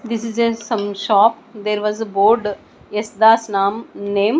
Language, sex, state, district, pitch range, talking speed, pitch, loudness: English, female, Odisha, Nuapada, 205-230 Hz, 165 wpm, 215 Hz, -18 LUFS